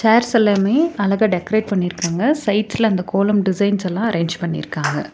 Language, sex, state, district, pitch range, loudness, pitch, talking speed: Tamil, female, Tamil Nadu, Nilgiris, 185-220 Hz, -18 LUFS, 205 Hz, 130 wpm